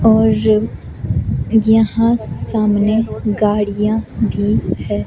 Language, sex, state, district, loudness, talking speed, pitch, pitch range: Hindi, female, Himachal Pradesh, Shimla, -16 LUFS, 70 wpm, 215 Hz, 210-220 Hz